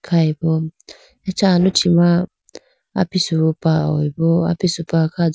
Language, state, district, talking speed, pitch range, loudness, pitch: Idu Mishmi, Arunachal Pradesh, Lower Dibang Valley, 125 wpm, 160-180 Hz, -17 LUFS, 165 Hz